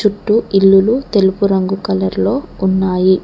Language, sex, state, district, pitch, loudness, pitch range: Telugu, female, Telangana, Mahabubabad, 195 Hz, -14 LUFS, 185-205 Hz